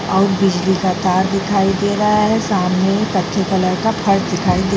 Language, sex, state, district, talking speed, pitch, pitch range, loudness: Hindi, female, Bihar, Vaishali, 115 wpm, 195 Hz, 185-200 Hz, -16 LUFS